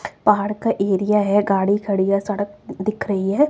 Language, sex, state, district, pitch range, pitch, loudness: Hindi, female, Himachal Pradesh, Shimla, 195-210 Hz, 205 Hz, -20 LUFS